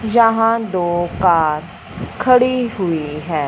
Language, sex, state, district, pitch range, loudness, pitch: Hindi, female, Punjab, Fazilka, 165-230 Hz, -16 LUFS, 185 Hz